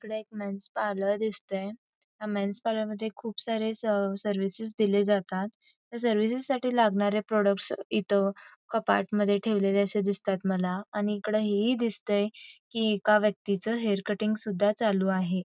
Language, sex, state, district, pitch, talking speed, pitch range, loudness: Marathi, female, Karnataka, Belgaum, 210 Hz, 125 wpm, 200-220 Hz, -28 LUFS